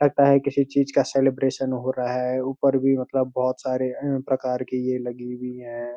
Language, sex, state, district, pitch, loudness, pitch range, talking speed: Hindi, male, Uttarakhand, Uttarkashi, 130 Hz, -23 LUFS, 125-135 Hz, 210 wpm